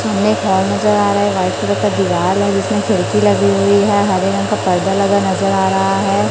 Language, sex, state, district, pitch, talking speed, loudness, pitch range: Hindi, female, Chhattisgarh, Raipur, 195 Hz, 245 wpm, -14 LUFS, 185-200 Hz